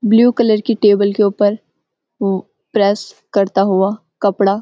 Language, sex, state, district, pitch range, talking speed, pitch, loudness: Hindi, female, Uttarakhand, Uttarkashi, 200-220 Hz, 145 wpm, 205 Hz, -15 LUFS